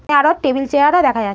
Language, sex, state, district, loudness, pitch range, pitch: Bengali, female, West Bengal, North 24 Parganas, -14 LUFS, 260-290 Hz, 285 Hz